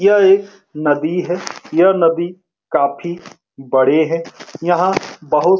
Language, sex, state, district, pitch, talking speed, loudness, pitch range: Hindi, male, Bihar, Saran, 175 Hz, 130 wpm, -16 LUFS, 160-190 Hz